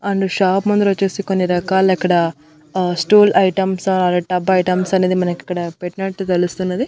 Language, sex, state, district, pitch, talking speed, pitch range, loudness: Telugu, female, Andhra Pradesh, Annamaya, 185 Hz, 155 wpm, 180-195 Hz, -17 LUFS